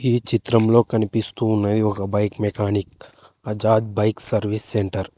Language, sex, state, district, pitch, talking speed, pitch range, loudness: Telugu, male, Telangana, Hyderabad, 105 Hz, 140 wpm, 105-110 Hz, -19 LUFS